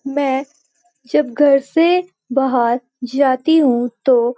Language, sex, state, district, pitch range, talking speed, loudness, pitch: Hindi, female, Uttarakhand, Uttarkashi, 250-300 Hz, 125 wpm, -16 LUFS, 275 Hz